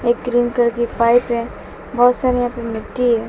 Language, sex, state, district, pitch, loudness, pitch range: Hindi, female, Bihar, West Champaran, 240 Hz, -17 LUFS, 235-245 Hz